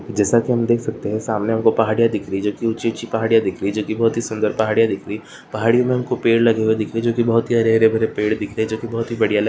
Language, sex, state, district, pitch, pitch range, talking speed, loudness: Hindi, male, Chhattisgarh, Korba, 110 Hz, 110-115 Hz, 310 wpm, -19 LUFS